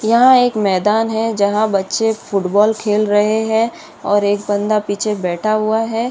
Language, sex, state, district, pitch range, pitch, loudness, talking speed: Hindi, female, Bihar, Saharsa, 205-225 Hz, 215 Hz, -16 LUFS, 165 wpm